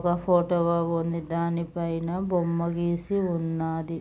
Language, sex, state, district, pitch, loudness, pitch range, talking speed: Telugu, male, Andhra Pradesh, Guntur, 170 Hz, -27 LUFS, 165-175 Hz, 90 wpm